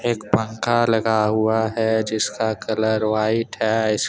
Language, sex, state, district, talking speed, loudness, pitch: Hindi, male, Jharkhand, Deoghar, 145 wpm, -20 LUFS, 110 Hz